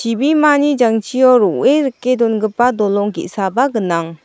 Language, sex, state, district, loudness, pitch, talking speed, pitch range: Garo, female, Meghalaya, South Garo Hills, -14 LUFS, 235 Hz, 115 wpm, 210-265 Hz